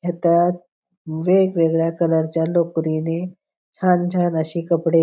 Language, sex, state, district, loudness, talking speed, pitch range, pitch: Marathi, female, Maharashtra, Pune, -19 LUFS, 130 wpm, 165-180 Hz, 170 Hz